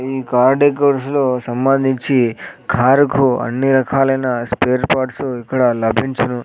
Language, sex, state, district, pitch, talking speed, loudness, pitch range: Telugu, male, Andhra Pradesh, Sri Satya Sai, 130 Hz, 95 wpm, -16 LUFS, 125-135 Hz